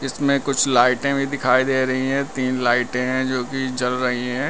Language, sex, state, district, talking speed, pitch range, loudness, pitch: Hindi, male, Uttar Pradesh, Lalitpur, 215 wpm, 125-135 Hz, -20 LUFS, 130 Hz